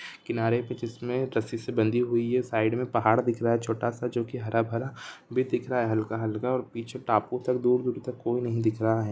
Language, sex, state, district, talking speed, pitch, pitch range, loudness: Hindi, male, Chhattisgarh, Raigarh, 210 wpm, 120 Hz, 115-125 Hz, -28 LUFS